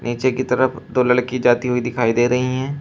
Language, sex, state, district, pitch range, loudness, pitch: Hindi, male, Uttar Pradesh, Shamli, 120-130 Hz, -18 LUFS, 125 Hz